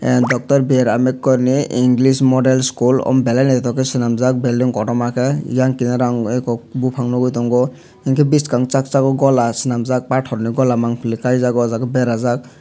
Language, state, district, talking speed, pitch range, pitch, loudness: Kokborok, Tripura, Dhalai, 175 wpm, 120-130 Hz, 125 Hz, -16 LUFS